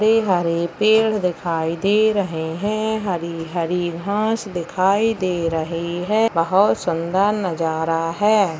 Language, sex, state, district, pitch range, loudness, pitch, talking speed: Hindi, female, Maharashtra, Chandrapur, 165-210 Hz, -20 LUFS, 180 Hz, 125 wpm